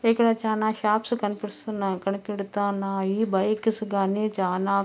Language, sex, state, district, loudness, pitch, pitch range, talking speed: Telugu, female, Andhra Pradesh, Anantapur, -26 LUFS, 205 Hz, 195-215 Hz, 100 wpm